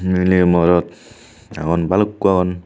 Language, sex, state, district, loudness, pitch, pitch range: Chakma, male, Tripura, Unakoti, -16 LUFS, 90 Hz, 85-100 Hz